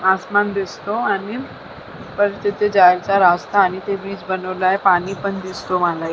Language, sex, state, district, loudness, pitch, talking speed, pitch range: Marathi, female, Maharashtra, Sindhudurg, -18 LUFS, 195 Hz, 135 wpm, 185-200 Hz